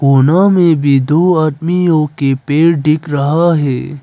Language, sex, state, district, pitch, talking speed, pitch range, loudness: Hindi, male, Arunachal Pradesh, Papum Pare, 155 Hz, 135 wpm, 140-170 Hz, -12 LUFS